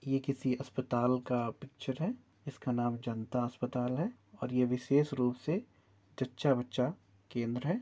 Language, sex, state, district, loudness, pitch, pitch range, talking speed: Hindi, male, Uttar Pradesh, Jyotiba Phule Nagar, -35 LUFS, 125 Hz, 120-140 Hz, 155 wpm